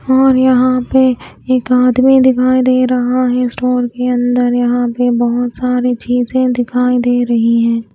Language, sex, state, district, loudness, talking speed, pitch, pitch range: Hindi, female, Haryana, Rohtak, -12 LUFS, 160 wpm, 250 Hz, 245-255 Hz